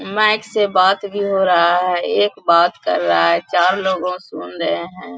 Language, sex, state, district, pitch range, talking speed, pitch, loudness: Hindi, female, Bihar, Bhagalpur, 170-200 Hz, 195 wpm, 185 Hz, -16 LUFS